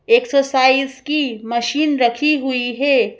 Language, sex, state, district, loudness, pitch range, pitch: Hindi, female, Madhya Pradesh, Bhopal, -17 LUFS, 255-300 Hz, 275 Hz